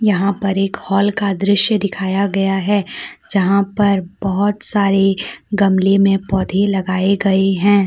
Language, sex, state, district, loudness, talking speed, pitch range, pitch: Hindi, female, Jharkhand, Deoghar, -16 LUFS, 145 wpm, 195-200 Hz, 195 Hz